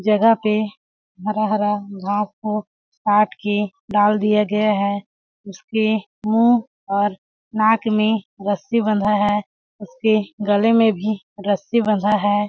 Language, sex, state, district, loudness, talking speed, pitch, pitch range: Hindi, female, Chhattisgarh, Balrampur, -19 LUFS, 130 wpm, 210 Hz, 205-220 Hz